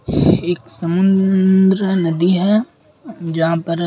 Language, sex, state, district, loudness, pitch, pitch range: Hindi, male, Uttar Pradesh, Hamirpur, -16 LUFS, 180 Hz, 170-190 Hz